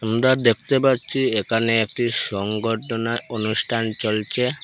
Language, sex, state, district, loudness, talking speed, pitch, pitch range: Bengali, male, Assam, Hailakandi, -21 LUFS, 105 wpm, 115 Hz, 110-125 Hz